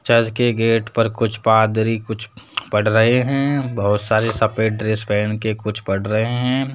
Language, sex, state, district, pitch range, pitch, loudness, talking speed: Hindi, male, Rajasthan, Jaipur, 110-115 Hz, 110 Hz, -18 LUFS, 180 wpm